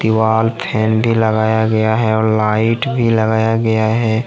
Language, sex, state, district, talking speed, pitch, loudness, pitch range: Hindi, male, Jharkhand, Ranchi, 170 wpm, 110 Hz, -15 LUFS, 110-115 Hz